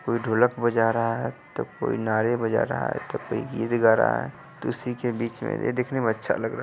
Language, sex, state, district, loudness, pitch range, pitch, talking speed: Hindi, male, Bihar, Vaishali, -25 LUFS, 115-120 Hz, 115 Hz, 255 wpm